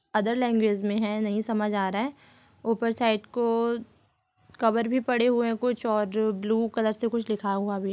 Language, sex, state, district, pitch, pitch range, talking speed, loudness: Hindi, female, Bihar, Supaul, 225 Hz, 210-235 Hz, 205 wpm, -26 LUFS